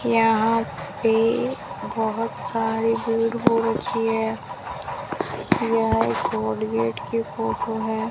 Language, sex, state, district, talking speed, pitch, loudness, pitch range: Hindi, female, Rajasthan, Bikaner, 95 wpm, 225 Hz, -23 LUFS, 160-230 Hz